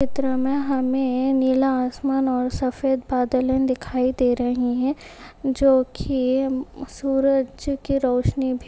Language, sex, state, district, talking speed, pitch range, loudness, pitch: Hindi, female, Uttar Pradesh, Hamirpur, 130 wpm, 255-270 Hz, -22 LUFS, 265 Hz